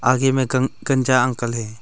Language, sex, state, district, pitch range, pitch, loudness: Hindi, male, Arunachal Pradesh, Longding, 120-130 Hz, 130 Hz, -19 LUFS